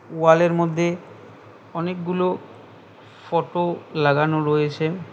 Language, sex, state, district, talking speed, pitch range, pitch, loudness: Bengali, male, West Bengal, Cooch Behar, 70 wpm, 150-175 Hz, 165 Hz, -21 LUFS